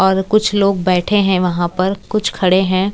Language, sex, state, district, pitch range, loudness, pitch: Hindi, female, Chhattisgarh, Raipur, 185-205 Hz, -15 LUFS, 190 Hz